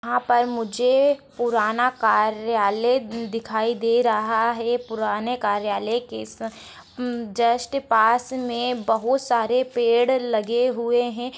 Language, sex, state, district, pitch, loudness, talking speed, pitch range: Hindi, female, Maharashtra, Chandrapur, 235 Hz, -22 LUFS, 115 wpm, 225-245 Hz